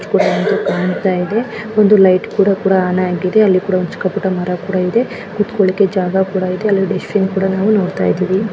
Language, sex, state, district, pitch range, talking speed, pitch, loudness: Kannada, female, Karnataka, Shimoga, 185-205 Hz, 195 wpm, 190 Hz, -15 LUFS